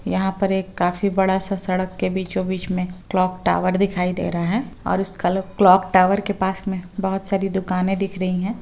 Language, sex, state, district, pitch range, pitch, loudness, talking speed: Hindi, female, Bihar, Muzaffarpur, 185-195 Hz, 190 Hz, -21 LUFS, 200 wpm